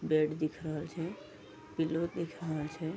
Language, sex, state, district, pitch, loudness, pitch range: Maithili, female, Bihar, Vaishali, 155 Hz, -36 LUFS, 150-165 Hz